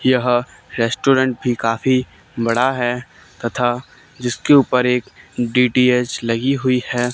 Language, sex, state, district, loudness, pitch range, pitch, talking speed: Hindi, male, Haryana, Charkhi Dadri, -18 LUFS, 120-130 Hz, 125 Hz, 120 wpm